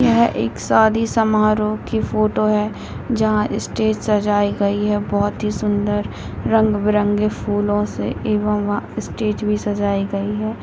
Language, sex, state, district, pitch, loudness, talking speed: Bhojpuri, female, Bihar, Saran, 205 Hz, -19 LUFS, 135 wpm